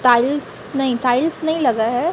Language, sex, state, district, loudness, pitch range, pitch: Hindi, female, Chhattisgarh, Raipur, -19 LUFS, 245-315 Hz, 265 Hz